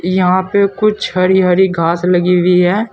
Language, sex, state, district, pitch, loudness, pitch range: Hindi, male, Uttar Pradesh, Saharanpur, 185 Hz, -12 LUFS, 180-190 Hz